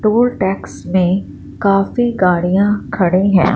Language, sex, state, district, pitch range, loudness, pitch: Hindi, female, Punjab, Fazilka, 185-210 Hz, -15 LUFS, 195 Hz